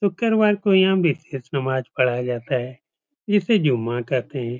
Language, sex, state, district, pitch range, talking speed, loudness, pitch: Hindi, male, Uttar Pradesh, Etah, 125-200 Hz, 155 wpm, -21 LUFS, 135 Hz